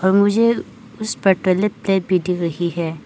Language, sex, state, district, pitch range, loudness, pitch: Hindi, female, Arunachal Pradesh, Papum Pare, 175-205 Hz, -19 LUFS, 190 Hz